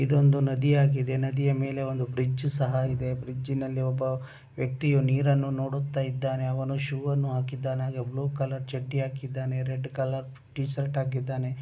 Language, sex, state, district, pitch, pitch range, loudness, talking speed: Kannada, male, Karnataka, Raichur, 135 Hz, 130-140 Hz, -28 LUFS, 155 wpm